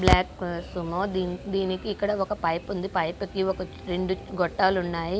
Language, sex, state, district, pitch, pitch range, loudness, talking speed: Telugu, female, Andhra Pradesh, Guntur, 185 Hz, 175-195 Hz, -27 LUFS, 140 wpm